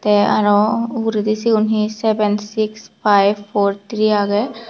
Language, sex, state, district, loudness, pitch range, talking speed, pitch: Chakma, female, Tripura, Dhalai, -17 LUFS, 205-220 Hz, 140 wpm, 215 Hz